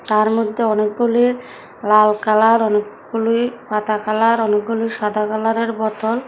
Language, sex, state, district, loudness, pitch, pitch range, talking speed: Bengali, female, Tripura, South Tripura, -17 LUFS, 220 Hz, 215-230 Hz, 105 wpm